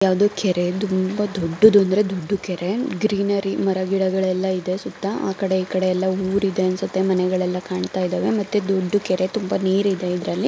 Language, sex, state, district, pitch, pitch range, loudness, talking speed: Kannada, female, Karnataka, Mysore, 190 Hz, 185-200 Hz, -21 LUFS, 145 wpm